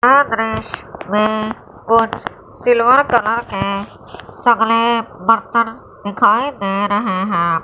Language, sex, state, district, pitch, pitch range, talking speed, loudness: Hindi, female, Punjab, Fazilka, 225 Hz, 205-235 Hz, 95 wpm, -16 LUFS